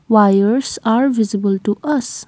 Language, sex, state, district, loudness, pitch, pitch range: English, female, Assam, Kamrup Metropolitan, -16 LUFS, 220 Hz, 205-250 Hz